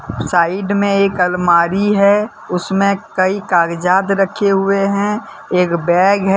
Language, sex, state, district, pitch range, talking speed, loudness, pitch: Hindi, male, Jharkhand, Deoghar, 180-200 Hz, 130 wpm, -15 LUFS, 195 Hz